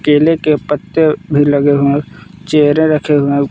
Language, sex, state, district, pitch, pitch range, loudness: Hindi, male, Jharkhand, Palamu, 150 Hz, 145-155 Hz, -12 LUFS